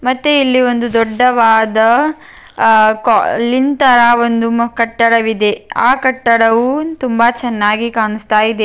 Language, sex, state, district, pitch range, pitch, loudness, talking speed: Kannada, female, Karnataka, Belgaum, 225-255 Hz, 235 Hz, -12 LUFS, 110 wpm